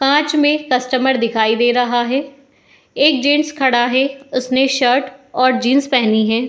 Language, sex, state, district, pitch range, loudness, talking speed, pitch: Hindi, female, Uttar Pradesh, Etah, 245-275 Hz, -15 LUFS, 175 wpm, 260 Hz